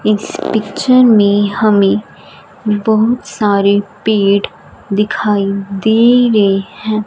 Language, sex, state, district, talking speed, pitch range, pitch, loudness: Hindi, female, Punjab, Fazilka, 95 wpm, 200-220 Hz, 210 Hz, -12 LUFS